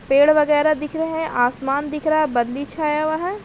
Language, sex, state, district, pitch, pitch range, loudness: Hindi, female, Bihar, Gaya, 300 Hz, 280-310 Hz, -19 LUFS